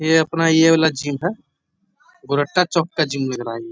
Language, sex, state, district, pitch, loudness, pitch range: Hindi, male, Bihar, Bhagalpur, 160 Hz, -18 LUFS, 140-170 Hz